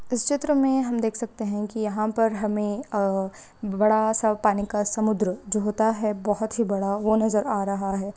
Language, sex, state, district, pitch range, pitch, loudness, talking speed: Hindi, female, Bihar, Madhepura, 205-220 Hz, 215 Hz, -24 LUFS, 205 wpm